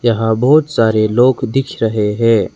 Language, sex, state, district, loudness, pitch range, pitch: Hindi, male, Arunachal Pradesh, Lower Dibang Valley, -13 LUFS, 110-130 Hz, 115 Hz